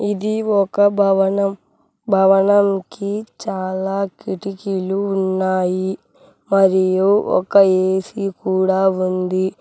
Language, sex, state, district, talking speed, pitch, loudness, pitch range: Telugu, male, Telangana, Hyderabad, 80 wpm, 195 Hz, -18 LUFS, 190-200 Hz